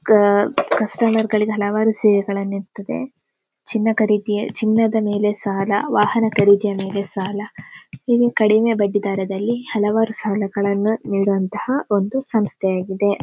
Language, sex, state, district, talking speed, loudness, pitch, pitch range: Kannada, female, Karnataka, Dakshina Kannada, 110 wpm, -19 LUFS, 210 Hz, 200-220 Hz